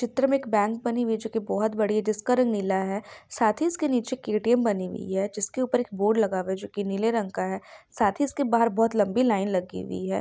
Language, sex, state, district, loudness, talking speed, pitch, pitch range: Hindi, female, Bihar, Jahanabad, -26 LUFS, 330 wpm, 215 Hz, 200-245 Hz